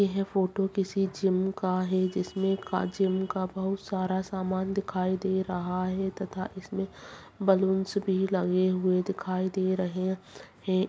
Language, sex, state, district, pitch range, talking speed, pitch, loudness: Hindi, female, Bihar, Bhagalpur, 185-195 Hz, 150 wpm, 190 Hz, -29 LUFS